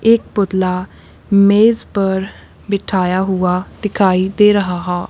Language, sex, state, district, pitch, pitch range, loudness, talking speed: Hindi, female, Punjab, Kapurthala, 195 Hz, 185-205 Hz, -15 LUFS, 105 wpm